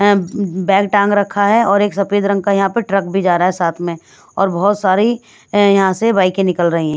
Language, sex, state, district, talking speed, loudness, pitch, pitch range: Hindi, female, Punjab, Pathankot, 240 wpm, -14 LUFS, 195 Hz, 185-205 Hz